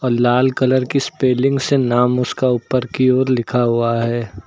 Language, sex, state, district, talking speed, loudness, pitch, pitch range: Hindi, male, Uttar Pradesh, Lucknow, 175 wpm, -17 LUFS, 125 Hz, 120-130 Hz